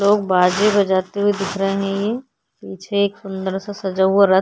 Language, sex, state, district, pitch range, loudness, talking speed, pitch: Hindi, female, Uttar Pradesh, Jyotiba Phule Nagar, 190-205 Hz, -19 LUFS, 215 wpm, 195 Hz